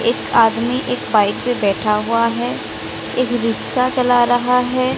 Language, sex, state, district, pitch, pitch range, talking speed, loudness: Hindi, female, Odisha, Sambalpur, 240 Hz, 230-250 Hz, 155 wpm, -17 LUFS